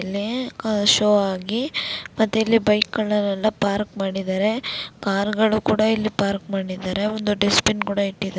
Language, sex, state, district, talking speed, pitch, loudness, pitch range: Kannada, female, Karnataka, Dakshina Kannada, 130 wpm, 205 Hz, -21 LUFS, 200-215 Hz